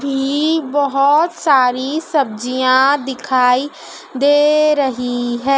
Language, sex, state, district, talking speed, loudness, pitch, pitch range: Hindi, female, Madhya Pradesh, Dhar, 85 wpm, -15 LUFS, 275 Hz, 255-290 Hz